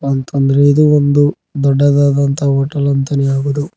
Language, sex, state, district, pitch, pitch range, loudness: Kannada, male, Karnataka, Koppal, 140 Hz, 140-145 Hz, -13 LUFS